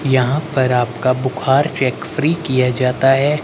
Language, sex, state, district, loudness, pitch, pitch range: Hindi, male, Haryana, Rohtak, -16 LUFS, 130 Hz, 130-150 Hz